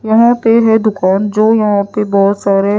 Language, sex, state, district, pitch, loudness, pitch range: Hindi, female, Odisha, Nuapada, 210 Hz, -11 LUFS, 200-220 Hz